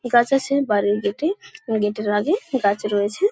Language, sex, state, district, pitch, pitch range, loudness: Bengali, male, West Bengal, Kolkata, 235 Hz, 205-290 Hz, -21 LUFS